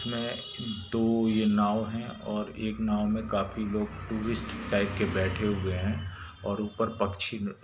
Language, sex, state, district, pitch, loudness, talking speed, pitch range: Hindi, male, Bihar, Sitamarhi, 105 Hz, -30 LUFS, 165 wpm, 100-110 Hz